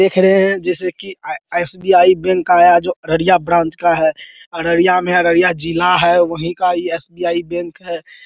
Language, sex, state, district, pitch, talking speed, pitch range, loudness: Hindi, male, Bihar, Araria, 175 Hz, 165 wpm, 170-180 Hz, -14 LUFS